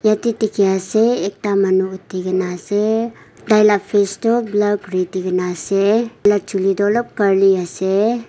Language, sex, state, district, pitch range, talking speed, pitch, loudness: Nagamese, female, Nagaland, Kohima, 190-215 Hz, 165 wpm, 200 Hz, -17 LUFS